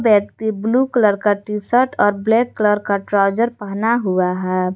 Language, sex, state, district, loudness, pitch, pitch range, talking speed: Hindi, female, Jharkhand, Garhwa, -17 LUFS, 210 Hz, 200-230 Hz, 175 wpm